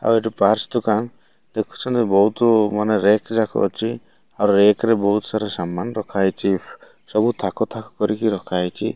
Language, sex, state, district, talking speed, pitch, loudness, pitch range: Odia, male, Odisha, Malkangiri, 155 wpm, 105 Hz, -20 LUFS, 100-115 Hz